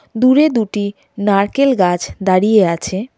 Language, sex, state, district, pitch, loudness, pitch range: Bengali, female, West Bengal, Cooch Behar, 205 Hz, -15 LUFS, 190-255 Hz